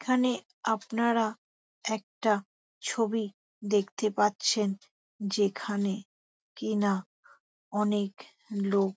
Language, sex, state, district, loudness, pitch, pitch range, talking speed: Bengali, female, West Bengal, Jhargram, -30 LUFS, 210 Hz, 200-225 Hz, 75 wpm